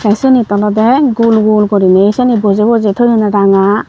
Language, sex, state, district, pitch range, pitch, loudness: Chakma, female, Tripura, Unakoti, 205-235 Hz, 215 Hz, -9 LUFS